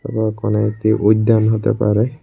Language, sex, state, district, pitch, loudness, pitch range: Bengali, male, Tripura, West Tripura, 110 Hz, -16 LUFS, 105-115 Hz